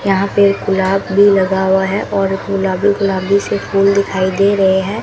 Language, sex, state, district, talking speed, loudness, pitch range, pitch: Hindi, female, Rajasthan, Bikaner, 190 wpm, -14 LUFS, 190-200 Hz, 195 Hz